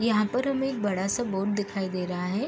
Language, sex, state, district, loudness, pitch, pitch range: Hindi, female, Uttar Pradesh, Gorakhpur, -28 LUFS, 205 Hz, 195-240 Hz